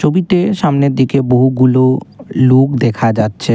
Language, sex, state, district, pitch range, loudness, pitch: Bengali, male, Assam, Kamrup Metropolitan, 125-140 Hz, -12 LUFS, 130 Hz